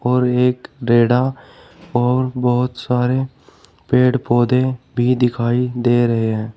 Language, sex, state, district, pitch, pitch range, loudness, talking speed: Hindi, male, Uttar Pradesh, Shamli, 125 Hz, 120-125 Hz, -17 LUFS, 120 wpm